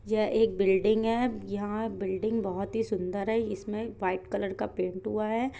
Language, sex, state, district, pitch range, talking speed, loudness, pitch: Hindi, female, Bihar, Jahanabad, 195-220 Hz, 180 wpm, -30 LUFS, 210 Hz